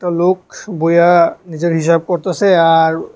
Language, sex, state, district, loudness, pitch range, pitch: Bengali, male, Tripura, West Tripura, -13 LUFS, 165-180 Hz, 170 Hz